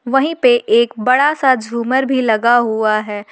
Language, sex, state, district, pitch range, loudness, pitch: Hindi, female, Jharkhand, Garhwa, 220-260 Hz, -14 LUFS, 240 Hz